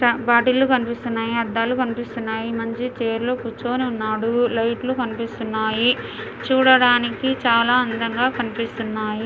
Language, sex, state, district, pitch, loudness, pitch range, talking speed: Telugu, female, Andhra Pradesh, Anantapur, 235 Hz, -20 LUFS, 230-245 Hz, 115 wpm